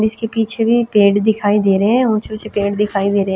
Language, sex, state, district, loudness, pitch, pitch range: Hindi, female, Chhattisgarh, Raipur, -15 LUFS, 210 Hz, 200-225 Hz